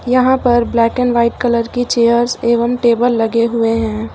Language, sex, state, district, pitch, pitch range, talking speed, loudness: Hindi, female, Uttar Pradesh, Lucknow, 235 Hz, 230-245 Hz, 190 wpm, -14 LUFS